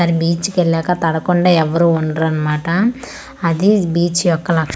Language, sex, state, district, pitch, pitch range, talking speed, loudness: Telugu, female, Andhra Pradesh, Manyam, 170 Hz, 160-180 Hz, 165 wpm, -15 LUFS